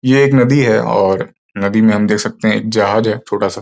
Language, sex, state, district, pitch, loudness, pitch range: Hindi, male, Uttar Pradesh, Gorakhpur, 110 Hz, -13 LUFS, 100-125 Hz